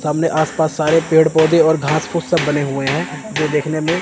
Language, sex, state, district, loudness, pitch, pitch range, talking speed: Hindi, male, Chandigarh, Chandigarh, -16 LUFS, 155 Hz, 150-160 Hz, 240 wpm